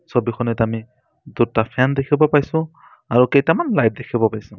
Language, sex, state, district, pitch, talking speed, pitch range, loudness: Assamese, male, Assam, Sonitpur, 125 Hz, 145 wpm, 115-145 Hz, -19 LUFS